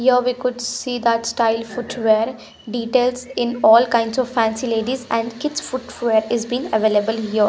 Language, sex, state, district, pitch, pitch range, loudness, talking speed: English, female, Punjab, Pathankot, 235 Hz, 225-250 Hz, -19 LUFS, 170 wpm